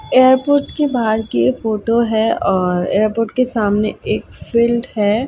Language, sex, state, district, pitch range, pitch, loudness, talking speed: Hindi, female, Uttar Pradesh, Ghazipur, 210-250 Hz, 225 Hz, -16 LUFS, 160 wpm